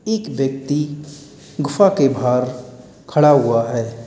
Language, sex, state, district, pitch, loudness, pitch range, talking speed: Hindi, male, Uttar Pradesh, Lalitpur, 140 Hz, -17 LUFS, 125-150 Hz, 120 wpm